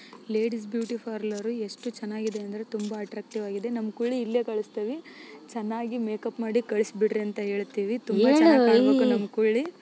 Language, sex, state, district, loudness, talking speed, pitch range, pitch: Kannada, female, Karnataka, Raichur, -27 LUFS, 145 wpm, 215-235 Hz, 225 Hz